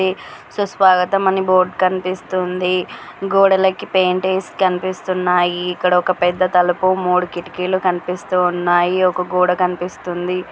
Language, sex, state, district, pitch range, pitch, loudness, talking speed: Telugu, female, Andhra Pradesh, Srikakulam, 180-185 Hz, 185 Hz, -17 LUFS, 105 wpm